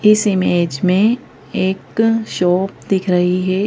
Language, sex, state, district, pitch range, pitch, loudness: Hindi, female, Madhya Pradesh, Bhopal, 180-210 Hz, 190 Hz, -16 LUFS